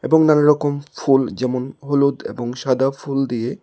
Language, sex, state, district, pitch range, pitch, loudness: Bengali, male, Tripura, West Tripura, 130-145 Hz, 135 Hz, -19 LUFS